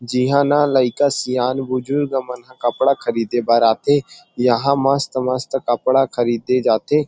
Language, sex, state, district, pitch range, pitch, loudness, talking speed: Chhattisgarhi, male, Chhattisgarh, Rajnandgaon, 120-140 Hz, 130 Hz, -18 LUFS, 135 wpm